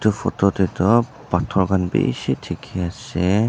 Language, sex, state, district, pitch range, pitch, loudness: Nagamese, male, Nagaland, Dimapur, 90-110 Hz, 100 Hz, -21 LUFS